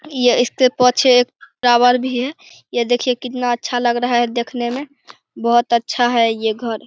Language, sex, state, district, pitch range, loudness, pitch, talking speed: Hindi, male, Bihar, Begusarai, 240-250 Hz, -17 LUFS, 245 Hz, 190 wpm